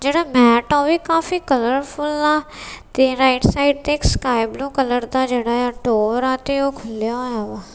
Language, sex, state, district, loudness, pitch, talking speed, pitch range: Punjabi, female, Punjab, Kapurthala, -18 LUFS, 265 Hz, 195 wpm, 245-290 Hz